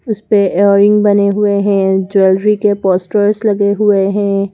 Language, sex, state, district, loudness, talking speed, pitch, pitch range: Hindi, female, Madhya Pradesh, Bhopal, -12 LUFS, 160 wpm, 200 Hz, 195-210 Hz